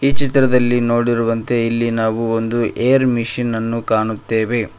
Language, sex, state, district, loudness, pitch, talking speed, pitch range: Kannada, male, Karnataka, Koppal, -17 LUFS, 115 Hz, 125 wpm, 115-120 Hz